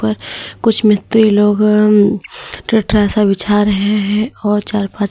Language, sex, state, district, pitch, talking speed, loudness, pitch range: Hindi, female, Uttar Pradesh, Lalitpur, 210 Hz, 140 wpm, -13 LUFS, 200-210 Hz